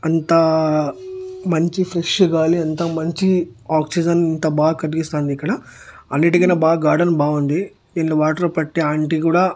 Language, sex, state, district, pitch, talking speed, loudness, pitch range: Telugu, male, Andhra Pradesh, Annamaya, 165 Hz, 125 wpm, -18 LUFS, 155-175 Hz